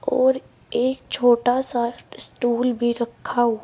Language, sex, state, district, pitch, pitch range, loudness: Hindi, female, Uttar Pradesh, Saharanpur, 245 Hz, 235-255 Hz, -20 LUFS